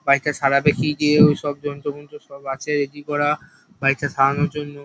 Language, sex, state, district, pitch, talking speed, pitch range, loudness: Bengali, male, West Bengal, Kolkata, 145 Hz, 185 wpm, 140-150 Hz, -20 LUFS